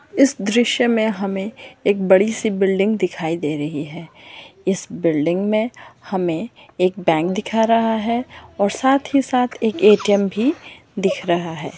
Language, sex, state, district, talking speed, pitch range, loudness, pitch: Marwari, female, Rajasthan, Churu, 160 wpm, 185-235 Hz, -19 LUFS, 205 Hz